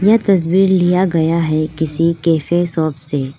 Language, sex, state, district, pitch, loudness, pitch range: Hindi, female, Arunachal Pradesh, Lower Dibang Valley, 165 Hz, -15 LUFS, 155-185 Hz